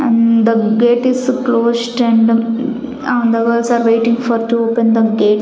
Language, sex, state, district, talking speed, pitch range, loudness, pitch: English, female, Chandigarh, Chandigarh, 165 wpm, 230-240 Hz, -13 LUFS, 235 Hz